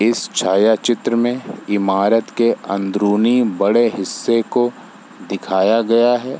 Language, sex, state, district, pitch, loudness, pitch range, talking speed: Hindi, male, Bihar, East Champaran, 115 Hz, -17 LUFS, 105-120 Hz, 115 wpm